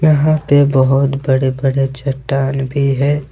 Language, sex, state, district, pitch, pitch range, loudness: Hindi, male, Jharkhand, Ranchi, 135 Hz, 135-145 Hz, -15 LUFS